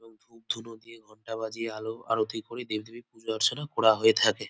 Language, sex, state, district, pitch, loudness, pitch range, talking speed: Bengali, male, West Bengal, North 24 Parganas, 115 Hz, -28 LUFS, 110-115 Hz, 200 wpm